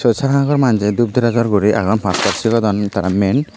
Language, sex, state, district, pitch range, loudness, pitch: Chakma, male, Tripura, Unakoti, 105-120 Hz, -15 LUFS, 110 Hz